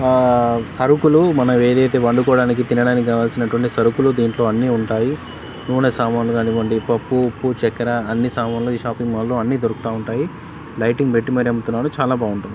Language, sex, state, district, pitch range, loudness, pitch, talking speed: Telugu, male, Telangana, Karimnagar, 115-130 Hz, -18 LUFS, 120 Hz, 160 wpm